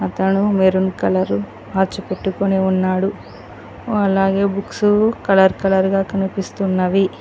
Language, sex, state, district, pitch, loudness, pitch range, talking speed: Telugu, female, Telangana, Mahabubabad, 190 Hz, -17 LUFS, 185-195 Hz, 100 wpm